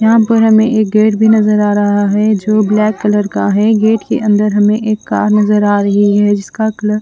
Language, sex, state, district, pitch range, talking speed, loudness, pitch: Hindi, female, Chandigarh, Chandigarh, 205-220 Hz, 240 wpm, -11 LUFS, 210 Hz